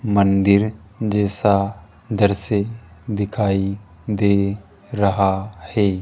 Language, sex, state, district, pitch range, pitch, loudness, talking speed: Hindi, male, Rajasthan, Jaipur, 100-105 Hz, 100 Hz, -20 LUFS, 70 wpm